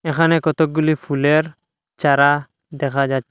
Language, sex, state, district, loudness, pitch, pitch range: Bengali, male, Assam, Hailakandi, -18 LUFS, 150 Hz, 140-155 Hz